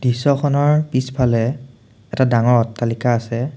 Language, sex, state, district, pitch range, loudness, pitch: Assamese, male, Assam, Sonitpur, 115-135 Hz, -17 LUFS, 125 Hz